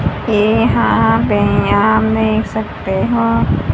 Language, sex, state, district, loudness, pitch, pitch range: Hindi, female, Haryana, Charkhi Dadri, -14 LUFS, 110 Hz, 100-115 Hz